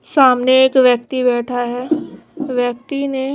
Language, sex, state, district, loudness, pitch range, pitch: Hindi, female, Chhattisgarh, Raipur, -16 LUFS, 245-270 Hz, 255 Hz